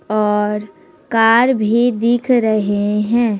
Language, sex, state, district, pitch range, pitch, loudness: Hindi, female, Chhattisgarh, Raipur, 210-235 Hz, 220 Hz, -15 LUFS